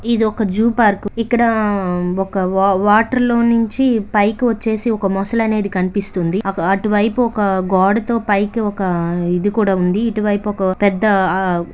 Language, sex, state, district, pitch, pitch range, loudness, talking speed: Telugu, female, Andhra Pradesh, Visakhapatnam, 205 Hz, 190-225 Hz, -16 LUFS, 135 wpm